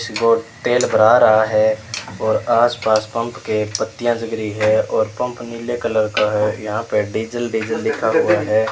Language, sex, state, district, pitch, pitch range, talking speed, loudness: Hindi, male, Rajasthan, Bikaner, 110 Hz, 110-115 Hz, 170 wpm, -18 LUFS